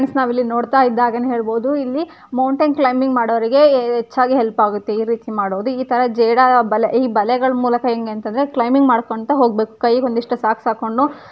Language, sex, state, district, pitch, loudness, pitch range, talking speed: Kannada, female, Karnataka, Gulbarga, 245 Hz, -16 LUFS, 230-260 Hz, 170 wpm